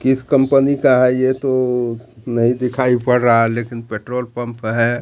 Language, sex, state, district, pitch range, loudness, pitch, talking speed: Hindi, male, Bihar, Katihar, 120-130 Hz, -17 LUFS, 125 Hz, 180 wpm